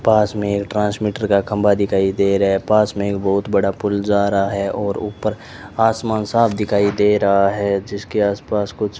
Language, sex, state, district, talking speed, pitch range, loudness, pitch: Hindi, male, Rajasthan, Bikaner, 200 wpm, 100-105 Hz, -18 LUFS, 100 Hz